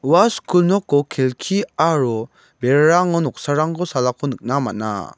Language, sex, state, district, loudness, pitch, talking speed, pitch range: Garo, male, Meghalaya, West Garo Hills, -18 LUFS, 145 Hz, 115 wpm, 125-175 Hz